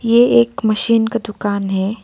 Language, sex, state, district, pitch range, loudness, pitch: Hindi, female, Arunachal Pradesh, Lower Dibang Valley, 205-230 Hz, -16 LUFS, 225 Hz